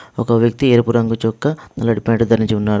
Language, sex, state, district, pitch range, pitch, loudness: Telugu, male, Telangana, Adilabad, 115-120 Hz, 115 Hz, -16 LUFS